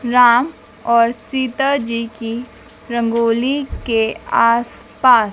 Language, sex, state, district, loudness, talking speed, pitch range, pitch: Hindi, female, Madhya Pradesh, Dhar, -17 LUFS, 100 wpm, 230-250 Hz, 235 Hz